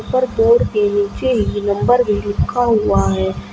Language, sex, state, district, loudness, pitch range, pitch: Hindi, female, Uttar Pradesh, Shamli, -16 LUFS, 205-245 Hz, 210 Hz